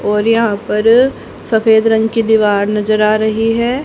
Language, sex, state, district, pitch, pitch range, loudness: Hindi, female, Haryana, Rohtak, 220 Hz, 210-230 Hz, -13 LUFS